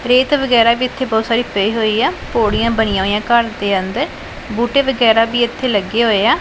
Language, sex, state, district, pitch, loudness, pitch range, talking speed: Punjabi, female, Punjab, Pathankot, 230 Hz, -15 LUFS, 215-245 Hz, 205 wpm